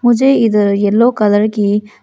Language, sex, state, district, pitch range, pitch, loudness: Hindi, female, Arunachal Pradesh, Lower Dibang Valley, 205-240 Hz, 210 Hz, -12 LUFS